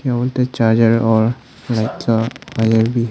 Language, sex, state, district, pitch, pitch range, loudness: Hindi, male, Arunachal Pradesh, Longding, 115 Hz, 115-125 Hz, -16 LUFS